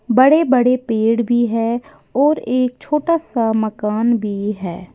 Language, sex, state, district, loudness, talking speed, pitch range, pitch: Hindi, female, Uttar Pradesh, Lalitpur, -17 LUFS, 145 wpm, 220-255 Hz, 235 Hz